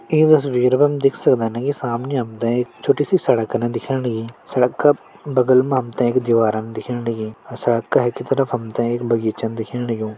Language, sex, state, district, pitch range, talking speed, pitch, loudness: Hindi, male, Uttarakhand, Tehri Garhwal, 115-135 Hz, 200 wpm, 120 Hz, -19 LUFS